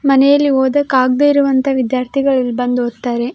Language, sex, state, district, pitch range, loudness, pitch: Kannada, female, Karnataka, Belgaum, 250-275 Hz, -14 LUFS, 265 Hz